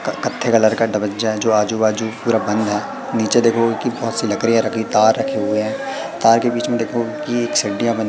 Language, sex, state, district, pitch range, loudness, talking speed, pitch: Hindi, male, Madhya Pradesh, Katni, 110-120 Hz, -18 LUFS, 215 wpm, 115 Hz